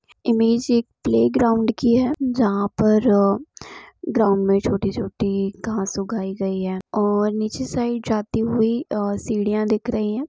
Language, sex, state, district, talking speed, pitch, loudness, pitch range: Hindi, female, Bihar, Gopalganj, 140 wpm, 215 Hz, -21 LUFS, 200-235 Hz